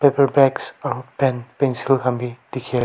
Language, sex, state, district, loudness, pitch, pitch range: Nagamese, male, Nagaland, Kohima, -20 LUFS, 130 Hz, 125-135 Hz